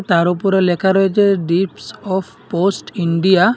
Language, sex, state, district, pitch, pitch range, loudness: Bengali, male, Assam, Hailakandi, 190 Hz, 175-195 Hz, -16 LUFS